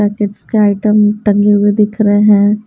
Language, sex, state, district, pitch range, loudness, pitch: Hindi, female, Haryana, Rohtak, 205-210 Hz, -11 LUFS, 210 Hz